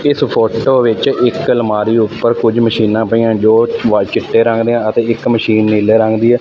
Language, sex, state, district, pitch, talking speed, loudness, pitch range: Punjabi, male, Punjab, Fazilka, 115 Hz, 195 wpm, -12 LUFS, 110-115 Hz